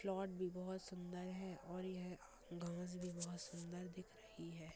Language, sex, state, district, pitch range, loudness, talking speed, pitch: Hindi, male, Uttar Pradesh, Gorakhpur, 175-185 Hz, -49 LUFS, 175 wpm, 180 Hz